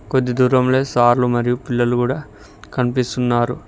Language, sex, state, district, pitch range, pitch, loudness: Telugu, male, Telangana, Mahabubabad, 120-125 Hz, 125 Hz, -18 LUFS